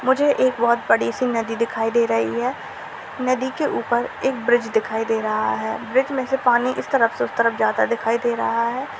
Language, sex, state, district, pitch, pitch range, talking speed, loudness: Hindi, female, Uttar Pradesh, Jalaun, 235 Hz, 225-255 Hz, 220 wpm, -21 LUFS